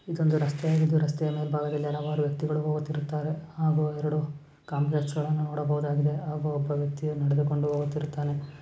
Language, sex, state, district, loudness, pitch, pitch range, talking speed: Kannada, female, Karnataka, Shimoga, -28 LUFS, 150 Hz, 145-150 Hz, 120 wpm